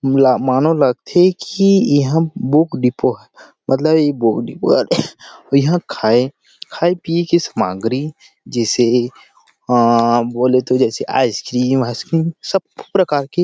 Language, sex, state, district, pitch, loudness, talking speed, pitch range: Chhattisgarhi, male, Chhattisgarh, Rajnandgaon, 135 Hz, -16 LUFS, 130 wpm, 125-165 Hz